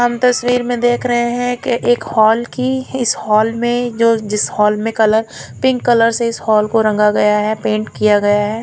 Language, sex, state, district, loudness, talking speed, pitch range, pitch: Hindi, female, Punjab, Fazilka, -15 LUFS, 215 wpm, 215-245 Hz, 230 Hz